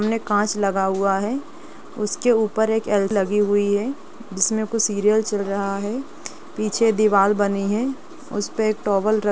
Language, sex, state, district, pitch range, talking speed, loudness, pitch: Hindi, female, Chhattisgarh, Rajnandgaon, 205-230 Hz, 160 wpm, -21 LUFS, 215 Hz